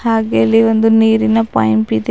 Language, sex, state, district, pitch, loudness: Kannada, female, Karnataka, Bidar, 220 Hz, -12 LUFS